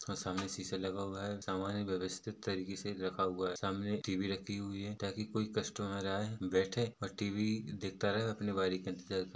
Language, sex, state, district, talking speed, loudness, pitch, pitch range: Hindi, male, Chhattisgarh, Rajnandgaon, 210 wpm, -38 LUFS, 100 Hz, 95-105 Hz